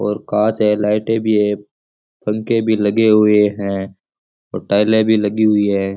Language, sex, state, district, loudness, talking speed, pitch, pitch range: Rajasthani, male, Rajasthan, Churu, -16 LUFS, 170 wpm, 105 Hz, 100-110 Hz